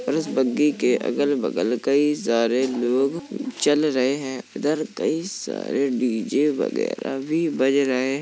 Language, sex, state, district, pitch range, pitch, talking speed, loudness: Hindi, male, Uttar Pradesh, Jalaun, 130-150 Hz, 140 Hz, 155 wpm, -22 LUFS